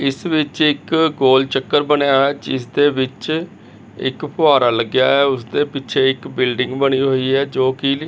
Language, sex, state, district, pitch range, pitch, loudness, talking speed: Punjabi, male, Chandigarh, Chandigarh, 130-145 Hz, 135 Hz, -17 LUFS, 180 wpm